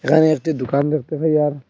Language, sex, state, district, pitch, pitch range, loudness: Bengali, male, Assam, Hailakandi, 155 Hz, 145-160 Hz, -18 LUFS